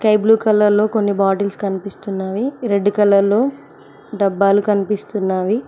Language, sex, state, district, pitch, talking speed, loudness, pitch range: Telugu, female, Telangana, Mahabubabad, 205 Hz, 105 wpm, -17 LUFS, 200-215 Hz